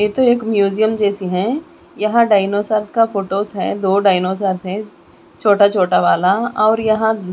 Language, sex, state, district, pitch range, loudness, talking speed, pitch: Hindi, female, Chandigarh, Chandigarh, 195-220 Hz, -16 LUFS, 155 wpm, 205 Hz